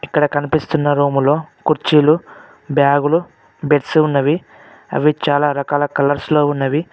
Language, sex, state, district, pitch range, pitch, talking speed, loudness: Telugu, male, Telangana, Mahabubabad, 145-150 Hz, 145 Hz, 105 wpm, -16 LUFS